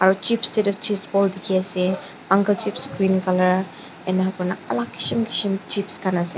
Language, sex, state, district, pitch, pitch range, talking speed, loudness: Nagamese, female, Nagaland, Dimapur, 190 Hz, 185-200 Hz, 180 wpm, -19 LUFS